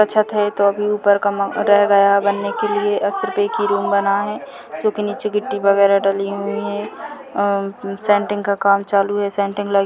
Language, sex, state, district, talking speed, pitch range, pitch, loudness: Hindi, female, Chhattisgarh, Raigarh, 225 wpm, 200-210 Hz, 205 Hz, -18 LUFS